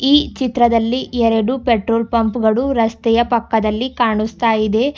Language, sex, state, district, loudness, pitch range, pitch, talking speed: Kannada, female, Karnataka, Bidar, -16 LUFS, 225-245 Hz, 230 Hz, 120 wpm